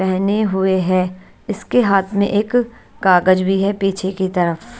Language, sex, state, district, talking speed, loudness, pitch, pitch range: Hindi, female, Chhattisgarh, Raipur, 160 wpm, -17 LUFS, 195 Hz, 185-205 Hz